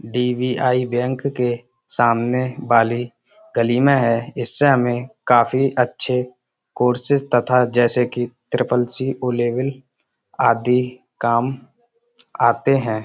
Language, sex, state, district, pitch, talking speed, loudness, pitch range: Hindi, male, Uttar Pradesh, Budaun, 125 Hz, 120 wpm, -19 LUFS, 120-130 Hz